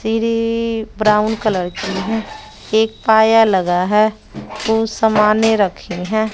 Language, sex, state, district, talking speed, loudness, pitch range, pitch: Hindi, female, Bihar, West Champaran, 125 wpm, -16 LUFS, 210-225 Hz, 220 Hz